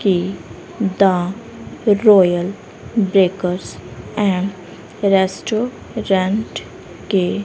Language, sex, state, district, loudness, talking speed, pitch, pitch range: Hindi, female, Haryana, Rohtak, -18 LUFS, 55 wpm, 195 Hz, 180-210 Hz